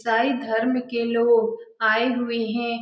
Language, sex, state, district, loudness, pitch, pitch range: Hindi, female, Bihar, Lakhisarai, -22 LUFS, 235 Hz, 225-235 Hz